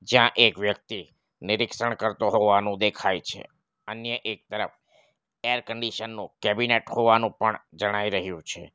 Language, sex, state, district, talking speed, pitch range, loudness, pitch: Gujarati, male, Gujarat, Valsad, 135 wpm, 100-115 Hz, -25 LUFS, 110 Hz